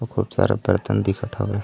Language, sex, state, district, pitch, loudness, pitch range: Chhattisgarhi, male, Chhattisgarh, Raigarh, 110 Hz, -22 LUFS, 100-120 Hz